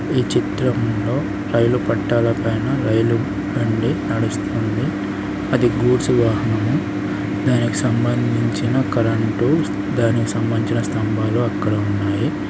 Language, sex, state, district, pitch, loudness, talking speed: Telugu, male, Andhra Pradesh, Srikakulam, 105 Hz, -19 LUFS, 90 wpm